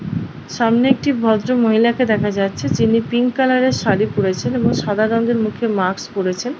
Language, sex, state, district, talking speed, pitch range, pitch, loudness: Bengali, female, West Bengal, Paschim Medinipur, 170 wpm, 205-245 Hz, 230 Hz, -17 LUFS